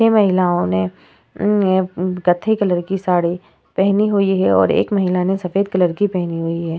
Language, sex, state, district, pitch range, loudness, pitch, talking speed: Hindi, female, Uttar Pradesh, Etah, 170-195 Hz, -17 LUFS, 180 Hz, 205 wpm